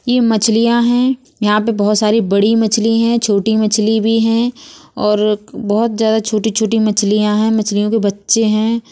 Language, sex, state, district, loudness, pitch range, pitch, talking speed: Bundeli, female, Uttar Pradesh, Budaun, -14 LUFS, 210-230 Hz, 220 Hz, 170 wpm